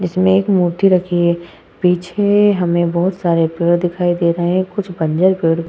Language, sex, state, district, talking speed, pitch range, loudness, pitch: Hindi, female, Uttar Pradesh, Hamirpur, 190 wpm, 170-185 Hz, -15 LUFS, 175 Hz